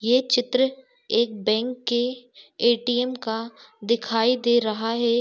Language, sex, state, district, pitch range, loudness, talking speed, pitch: Hindi, female, Jharkhand, Sahebganj, 230-250 Hz, -23 LUFS, 125 wpm, 240 Hz